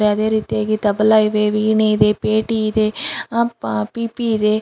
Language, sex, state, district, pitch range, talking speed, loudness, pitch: Kannada, female, Karnataka, Bidar, 210-220 Hz, 140 wpm, -17 LUFS, 215 Hz